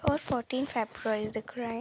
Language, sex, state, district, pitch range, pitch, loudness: Hindi, female, Jharkhand, Sahebganj, 220-255 Hz, 235 Hz, -32 LUFS